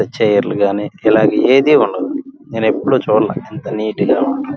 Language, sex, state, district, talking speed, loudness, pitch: Telugu, male, Andhra Pradesh, Krishna, 170 wpm, -15 LUFS, 115 Hz